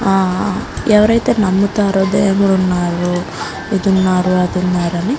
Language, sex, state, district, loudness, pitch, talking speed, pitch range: Telugu, female, Andhra Pradesh, Guntur, -15 LUFS, 190 Hz, 115 wpm, 180-200 Hz